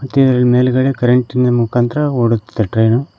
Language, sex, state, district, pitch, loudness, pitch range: Kannada, male, Karnataka, Koppal, 125 Hz, -14 LUFS, 115-130 Hz